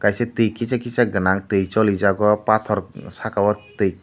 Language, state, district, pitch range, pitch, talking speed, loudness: Kokborok, Tripura, Dhalai, 100-110 Hz, 105 Hz, 165 wpm, -20 LUFS